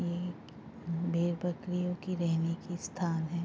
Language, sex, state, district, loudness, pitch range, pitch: Hindi, female, Bihar, Begusarai, -34 LUFS, 170-180 Hz, 175 Hz